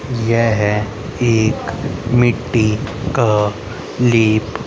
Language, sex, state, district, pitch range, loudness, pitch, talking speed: Hindi, male, Haryana, Rohtak, 110-120 Hz, -16 LUFS, 110 Hz, 65 wpm